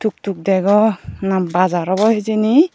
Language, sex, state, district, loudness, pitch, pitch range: Chakma, female, Tripura, Unakoti, -16 LUFS, 200 Hz, 185-220 Hz